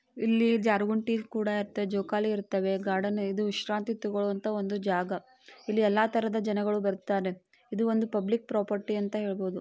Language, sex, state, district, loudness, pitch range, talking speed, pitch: Kannada, female, Karnataka, Belgaum, -29 LUFS, 200-220 Hz, 145 wpm, 210 Hz